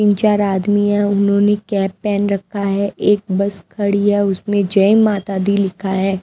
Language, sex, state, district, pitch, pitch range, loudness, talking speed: Hindi, female, Himachal Pradesh, Shimla, 200 Hz, 195-205 Hz, -16 LUFS, 185 wpm